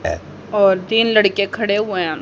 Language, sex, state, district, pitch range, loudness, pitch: Hindi, female, Haryana, Rohtak, 195-215 Hz, -17 LUFS, 205 Hz